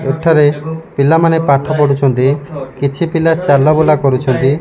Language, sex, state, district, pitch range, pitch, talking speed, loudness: Odia, male, Odisha, Malkangiri, 140-160 Hz, 145 Hz, 105 wpm, -12 LUFS